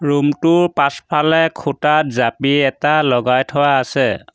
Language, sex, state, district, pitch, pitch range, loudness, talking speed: Assamese, male, Assam, Sonitpur, 145 Hz, 135-155 Hz, -15 LUFS, 125 wpm